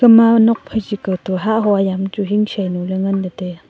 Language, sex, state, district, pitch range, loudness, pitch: Wancho, female, Arunachal Pradesh, Longding, 190-220 Hz, -16 LUFS, 200 Hz